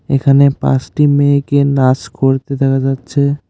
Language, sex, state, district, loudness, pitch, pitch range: Bengali, male, West Bengal, Cooch Behar, -13 LUFS, 135 Hz, 135-140 Hz